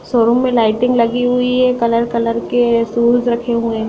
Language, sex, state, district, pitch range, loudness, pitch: Hindi, female, Bihar, Sitamarhi, 230-245 Hz, -15 LUFS, 235 Hz